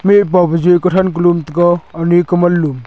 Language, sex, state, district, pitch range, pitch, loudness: Wancho, male, Arunachal Pradesh, Longding, 170-180 Hz, 175 Hz, -12 LUFS